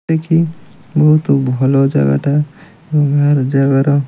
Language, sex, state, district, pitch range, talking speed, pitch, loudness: Odia, male, Odisha, Malkangiri, 135-155 Hz, 145 wpm, 145 Hz, -14 LUFS